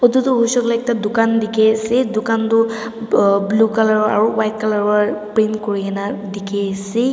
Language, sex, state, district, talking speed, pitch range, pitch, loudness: Nagamese, female, Nagaland, Dimapur, 185 wpm, 210-225 Hz, 220 Hz, -17 LUFS